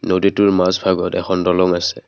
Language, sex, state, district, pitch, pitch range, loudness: Assamese, male, Assam, Kamrup Metropolitan, 90 Hz, 90-95 Hz, -16 LUFS